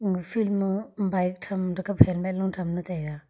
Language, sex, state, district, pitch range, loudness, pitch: Wancho, female, Arunachal Pradesh, Longding, 180-195 Hz, -26 LUFS, 185 Hz